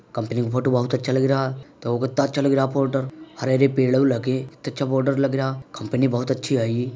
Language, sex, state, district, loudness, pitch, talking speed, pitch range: Hindi, male, Uttar Pradesh, Muzaffarnagar, -22 LUFS, 130 Hz, 250 wpm, 130-135 Hz